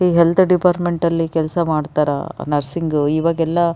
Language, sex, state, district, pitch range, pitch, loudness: Kannada, female, Karnataka, Raichur, 155-170 Hz, 165 Hz, -17 LUFS